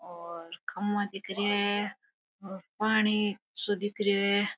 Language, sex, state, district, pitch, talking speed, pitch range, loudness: Rajasthani, female, Rajasthan, Nagaur, 205 Hz, 145 wpm, 195-205 Hz, -30 LUFS